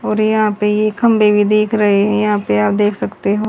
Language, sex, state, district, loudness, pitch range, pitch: Hindi, female, Haryana, Jhajjar, -14 LUFS, 205-215 Hz, 210 Hz